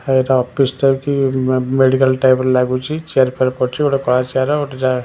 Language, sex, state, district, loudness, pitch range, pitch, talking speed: Odia, male, Odisha, Khordha, -16 LUFS, 130-135 Hz, 130 Hz, 200 wpm